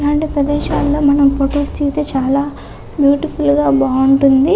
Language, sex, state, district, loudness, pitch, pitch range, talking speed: Telugu, female, Andhra Pradesh, Chittoor, -14 LUFS, 280 Hz, 270-290 Hz, 120 wpm